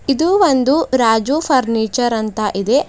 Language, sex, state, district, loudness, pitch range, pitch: Kannada, female, Karnataka, Bidar, -15 LUFS, 225-280 Hz, 250 Hz